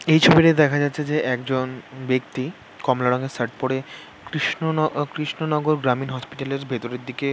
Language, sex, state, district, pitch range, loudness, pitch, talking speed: Bengali, male, West Bengal, North 24 Parganas, 130-150 Hz, -22 LUFS, 135 Hz, 155 wpm